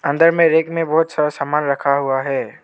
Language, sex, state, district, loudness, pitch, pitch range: Hindi, male, Arunachal Pradesh, Lower Dibang Valley, -17 LUFS, 150 Hz, 140-165 Hz